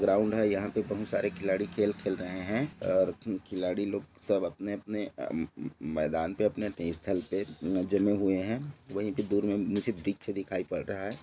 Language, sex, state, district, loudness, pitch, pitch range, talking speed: Hindi, male, Chhattisgarh, Bilaspur, -32 LUFS, 100 Hz, 95-105 Hz, 205 wpm